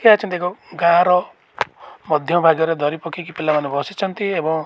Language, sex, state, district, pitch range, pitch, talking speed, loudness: Odia, male, Odisha, Malkangiri, 160-180 Hz, 170 Hz, 140 wpm, -19 LUFS